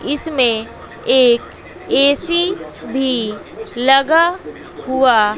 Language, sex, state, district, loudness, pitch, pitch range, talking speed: Hindi, female, Bihar, West Champaran, -15 LUFS, 265 Hz, 245-325 Hz, 65 wpm